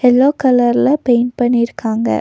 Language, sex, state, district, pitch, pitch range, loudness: Tamil, female, Tamil Nadu, Nilgiris, 245 Hz, 235-260 Hz, -14 LUFS